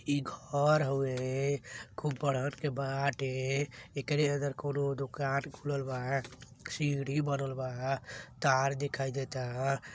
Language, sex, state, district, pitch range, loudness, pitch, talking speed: Bhojpuri, male, Uttar Pradesh, Deoria, 130-145 Hz, -33 LUFS, 135 Hz, 120 wpm